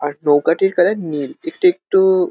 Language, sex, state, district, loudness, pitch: Bengali, male, West Bengal, Kolkata, -16 LUFS, 195 Hz